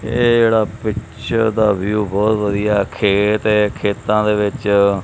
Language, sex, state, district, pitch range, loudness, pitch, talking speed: Punjabi, male, Punjab, Kapurthala, 100-110 Hz, -16 LUFS, 105 Hz, 155 wpm